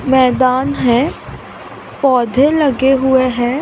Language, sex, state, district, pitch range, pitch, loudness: Hindi, female, Maharashtra, Mumbai Suburban, 255-270 Hz, 260 Hz, -13 LUFS